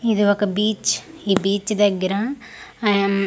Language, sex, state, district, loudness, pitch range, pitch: Telugu, female, Andhra Pradesh, Manyam, -20 LUFS, 200-215 Hz, 205 Hz